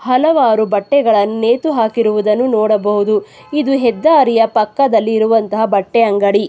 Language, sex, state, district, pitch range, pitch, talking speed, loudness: Kannada, female, Karnataka, Chamarajanagar, 210-255 Hz, 220 Hz, 85 wpm, -13 LUFS